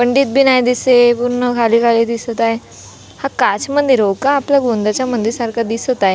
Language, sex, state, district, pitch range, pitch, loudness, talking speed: Marathi, female, Maharashtra, Gondia, 230-260 Hz, 245 Hz, -14 LUFS, 195 wpm